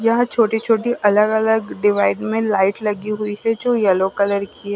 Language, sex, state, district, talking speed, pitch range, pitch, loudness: Hindi, female, Himachal Pradesh, Shimla, 165 wpm, 200-225 Hz, 210 Hz, -18 LUFS